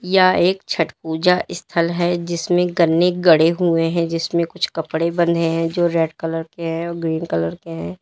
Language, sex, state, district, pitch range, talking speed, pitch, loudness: Hindi, female, Uttar Pradesh, Lalitpur, 165-175 Hz, 195 wpm, 170 Hz, -19 LUFS